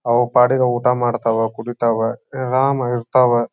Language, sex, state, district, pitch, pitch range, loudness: Kannada, male, Karnataka, Dharwad, 120 Hz, 120-125 Hz, -18 LUFS